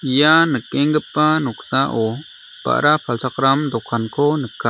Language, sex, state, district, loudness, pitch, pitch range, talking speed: Garo, male, Meghalaya, South Garo Hills, -18 LUFS, 140 Hz, 120-150 Hz, 90 wpm